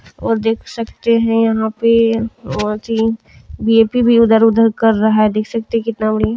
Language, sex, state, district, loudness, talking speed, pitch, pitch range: Maithili, female, Bihar, Kishanganj, -15 LUFS, 115 wpm, 225 Hz, 220-230 Hz